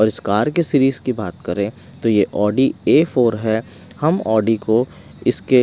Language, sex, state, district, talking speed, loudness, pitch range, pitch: Hindi, male, Odisha, Malkangiri, 190 wpm, -18 LUFS, 105-130 Hz, 110 Hz